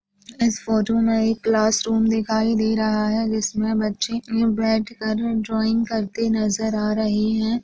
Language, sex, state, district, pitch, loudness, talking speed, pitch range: Hindi, female, Maharashtra, Sindhudurg, 220 Hz, -21 LUFS, 155 wpm, 215-225 Hz